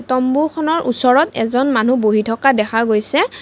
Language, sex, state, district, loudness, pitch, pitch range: Assamese, female, Assam, Kamrup Metropolitan, -15 LUFS, 255 Hz, 225-280 Hz